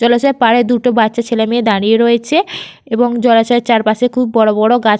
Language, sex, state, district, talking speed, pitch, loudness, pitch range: Bengali, female, Jharkhand, Sahebganj, 155 wpm, 235 Hz, -12 LUFS, 225-245 Hz